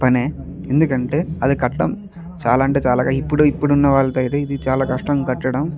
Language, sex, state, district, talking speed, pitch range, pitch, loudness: Telugu, male, Andhra Pradesh, Chittoor, 135 wpm, 130-150 Hz, 135 Hz, -18 LUFS